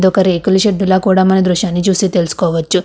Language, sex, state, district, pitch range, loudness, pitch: Telugu, female, Andhra Pradesh, Krishna, 180-190 Hz, -13 LUFS, 190 Hz